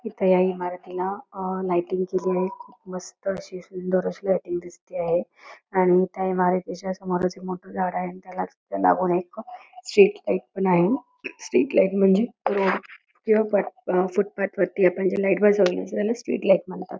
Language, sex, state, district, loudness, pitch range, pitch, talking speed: Marathi, female, Karnataka, Belgaum, -24 LUFS, 180-200 Hz, 185 Hz, 160 wpm